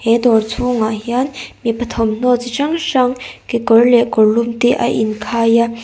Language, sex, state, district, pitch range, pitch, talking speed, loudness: Mizo, female, Mizoram, Aizawl, 230-250 Hz, 235 Hz, 175 wpm, -15 LUFS